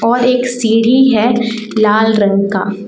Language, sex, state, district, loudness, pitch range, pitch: Hindi, female, Jharkhand, Palamu, -12 LUFS, 210-240 Hz, 225 Hz